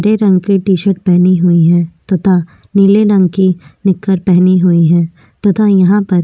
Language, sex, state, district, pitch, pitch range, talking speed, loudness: Hindi, female, Maharashtra, Aurangabad, 185 Hz, 175-195 Hz, 190 wpm, -11 LUFS